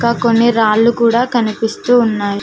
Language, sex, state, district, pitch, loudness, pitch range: Telugu, female, Telangana, Mahabubabad, 230 Hz, -13 LUFS, 220-235 Hz